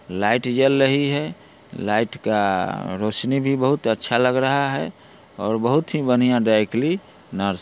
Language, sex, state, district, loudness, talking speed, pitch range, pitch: Hindi, male, Bihar, Muzaffarpur, -20 LUFS, 165 wpm, 110-135 Hz, 125 Hz